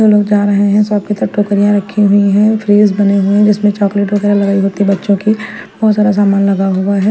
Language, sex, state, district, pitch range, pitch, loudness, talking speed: Hindi, female, Chandigarh, Chandigarh, 200-210 Hz, 205 Hz, -11 LUFS, 245 wpm